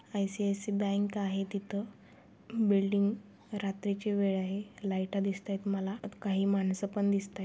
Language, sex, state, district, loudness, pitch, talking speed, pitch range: Marathi, female, Maharashtra, Sindhudurg, -33 LUFS, 200 Hz, 130 wpm, 195-205 Hz